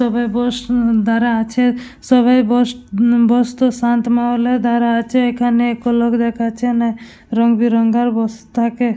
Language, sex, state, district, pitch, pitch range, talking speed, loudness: Bengali, female, West Bengal, Dakshin Dinajpur, 235 Hz, 230-245 Hz, 135 wpm, -15 LUFS